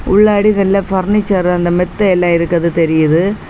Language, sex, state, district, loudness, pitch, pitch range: Tamil, female, Tamil Nadu, Kanyakumari, -13 LUFS, 185 Hz, 170-200 Hz